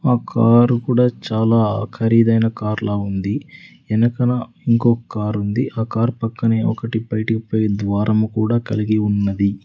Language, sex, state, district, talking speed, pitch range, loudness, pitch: Telugu, male, Andhra Pradesh, Sri Satya Sai, 130 wpm, 105-120 Hz, -18 LUFS, 115 Hz